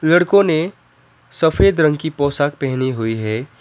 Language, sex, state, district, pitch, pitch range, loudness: Hindi, male, West Bengal, Alipurduar, 145 Hz, 130-160 Hz, -17 LUFS